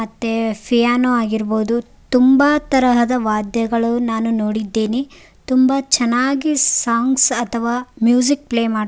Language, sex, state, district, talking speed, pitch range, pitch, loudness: Kannada, female, Karnataka, Raichur, 110 wpm, 225-255 Hz, 240 Hz, -16 LUFS